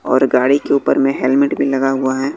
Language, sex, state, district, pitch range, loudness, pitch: Hindi, male, Bihar, West Champaran, 130-140 Hz, -15 LUFS, 135 Hz